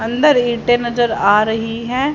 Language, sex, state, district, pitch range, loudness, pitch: Hindi, female, Haryana, Jhajjar, 225-245 Hz, -15 LUFS, 240 Hz